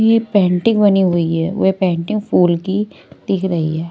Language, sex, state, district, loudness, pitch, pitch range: Hindi, female, Maharashtra, Washim, -16 LUFS, 190 Hz, 170-205 Hz